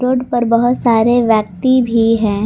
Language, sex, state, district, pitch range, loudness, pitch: Hindi, female, Jharkhand, Garhwa, 225-245 Hz, -13 LUFS, 235 Hz